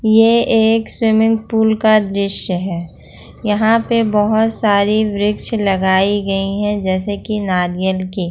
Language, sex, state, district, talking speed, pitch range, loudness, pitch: Hindi, female, Jharkhand, Ranchi, 135 wpm, 195-220 Hz, -15 LUFS, 210 Hz